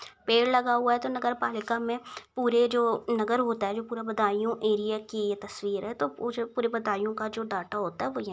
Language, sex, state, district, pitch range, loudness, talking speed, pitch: Hindi, female, Uttar Pradesh, Budaun, 210-240 Hz, -28 LUFS, 245 wpm, 225 Hz